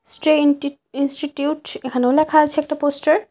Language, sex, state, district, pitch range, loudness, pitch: Bengali, female, West Bengal, Cooch Behar, 280-305 Hz, -19 LUFS, 290 Hz